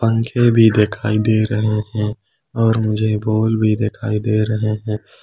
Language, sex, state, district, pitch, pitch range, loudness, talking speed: Hindi, male, Jharkhand, Palamu, 110 Hz, 105-110 Hz, -17 LUFS, 160 wpm